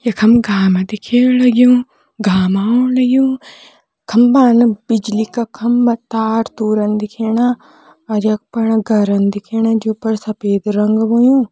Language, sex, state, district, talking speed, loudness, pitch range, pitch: Kumaoni, female, Uttarakhand, Tehri Garhwal, 125 wpm, -14 LUFS, 210-240 Hz, 225 Hz